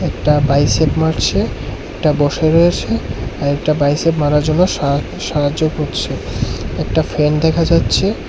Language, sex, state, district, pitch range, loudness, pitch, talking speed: Bengali, male, Tripura, West Tripura, 130-155 Hz, -15 LUFS, 145 Hz, 125 wpm